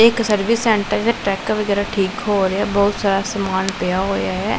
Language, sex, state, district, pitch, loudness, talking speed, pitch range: Punjabi, female, Punjab, Pathankot, 200 Hz, -18 LUFS, 220 wpm, 195-215 Hz